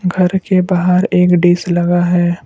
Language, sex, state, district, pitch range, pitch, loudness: Hindi, male, Assam, Kamrup Metropolitan, 175-180 Hz, 180 Hz, -13 LUFS